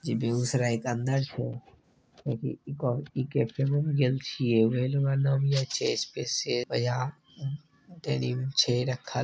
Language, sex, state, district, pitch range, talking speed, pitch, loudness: Maithili, male, Bihar, Begusarai, 125-140 Hz, 30 wpm, 130 Hz, -29 LUFS